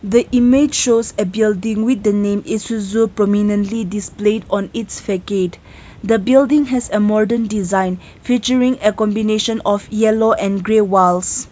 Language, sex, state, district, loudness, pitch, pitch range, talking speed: English, female, Nagaland, Kohima, -16 LUFS, 215 Hz, 205-230 Hz, 120 wpm